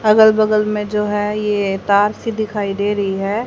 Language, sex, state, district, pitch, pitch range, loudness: Hindi, female, Haryana, Jhajjar, 210 Hz, 205-215 Hz, -17 LUFS